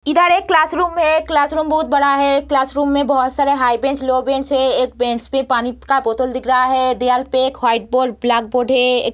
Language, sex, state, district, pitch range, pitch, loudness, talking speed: Hindi, female, Bihar, Muzaffarpur, 250-285 Hz, 265 Hz, -16 LUFS, 235 wpm